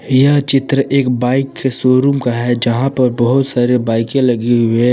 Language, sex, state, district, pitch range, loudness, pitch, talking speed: Hindi, male, Jharkhand, Palamu, 120-135 Hz, -14 LUFS, 125 Hz, 195 wpm